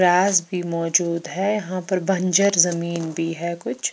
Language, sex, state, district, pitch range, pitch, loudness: Hindi, female, Chandigarh, Chandigarh, 170-190 Hz, 180 Hz, -21 LUFS